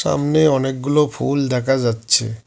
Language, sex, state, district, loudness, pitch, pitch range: Bengali, male, West Bengal, Cooch Behar, -18 LUFS, 135 Hz, 120-145 Hz